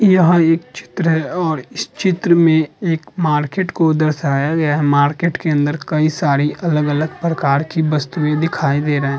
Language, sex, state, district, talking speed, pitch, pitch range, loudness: Hindi, male, Uttar Pradesh, Muzaffarnagar, 185 wpm, 155 Hz, 145-170 Hz, -16 LUFS